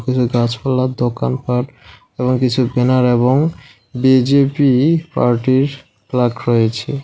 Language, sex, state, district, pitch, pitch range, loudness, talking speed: Bengali, male, West Bengal, Alipurduar, 125 Hz, 120-135 Hz, -15 LUFS, 95 wpm